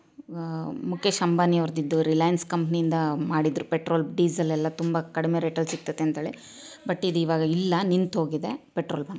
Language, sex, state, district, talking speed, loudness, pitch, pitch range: Kannada, female, Karnataka, Chamarajanagar, 150 wpm, -26 LUFS, 165 Hz, 160-175 Hz